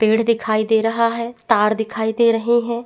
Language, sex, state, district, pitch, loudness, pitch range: Hindi, female, Chhattisgarh, Bastar, 225 Hz, -18 LUFS, 220-235 Hz